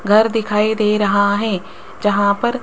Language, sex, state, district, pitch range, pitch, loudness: Hindi, female, Rajasthan, Jaipur, 200-220 Hz, 210 Hz, -16 LUFS